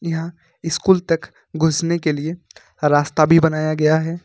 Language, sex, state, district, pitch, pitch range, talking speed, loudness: Hindi, male, Jharkhand, Ranchi, 160 Hz, 155-170 Hz, 155 wpm, -18 LUFS